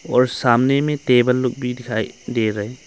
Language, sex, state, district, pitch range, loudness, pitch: Hindi, male, Arunachal Pradesh, Longding, 120-130 Hz, -19 LUFS, 125 Hz